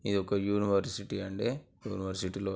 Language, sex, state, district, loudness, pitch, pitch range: Telugu, male, Andhra Pradesh, Anantapur, -33 LUFS, 100 Hz, 95-100 Hz